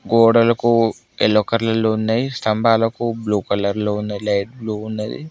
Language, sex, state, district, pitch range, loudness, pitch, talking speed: Telugu, male, Telangana, Mahabubabad, 105-115 Hz, -18 LUFS, 110 Hz, 135 wpm